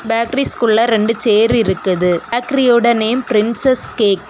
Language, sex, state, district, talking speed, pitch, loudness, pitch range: Tamil, female, Tamil Nadu, Kanyakumari, 125 wpm, 230 Hz, -14 LUFS, 215-240 Hz